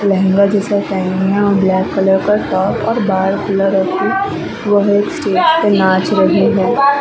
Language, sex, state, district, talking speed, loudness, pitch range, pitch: Hindi, female, Maharashtra, Mumbai Suburban, 180 wpm, -13 LUFS, 190-205 Hz, 200 Hz